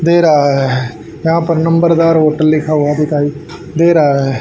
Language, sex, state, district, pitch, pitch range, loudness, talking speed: Hindi, male, Haryana, Charkhi Dadri, 155 Hz, 145-165 Hz, -12 LUFS, 175 wpm